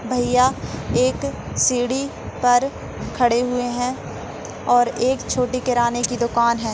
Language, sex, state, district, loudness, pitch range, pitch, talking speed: Hindi, female, Maharashtra, Nagpur, -20 LUFS, 240-250 Hz, 245 Hz, 125 wpm